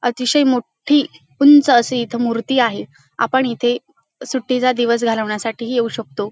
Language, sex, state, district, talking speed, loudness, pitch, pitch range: Marathi, female, Maharashtra, Dhule, 140 wpm, -17 LUFS, 245 Hz, 230-265 Hz